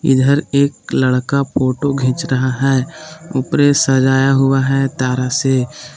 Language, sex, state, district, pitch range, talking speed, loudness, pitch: Hindi, male, Jharkhand, Palamu, 130-140 Hz, 130 wpm, -15 LUFS, 135 Hz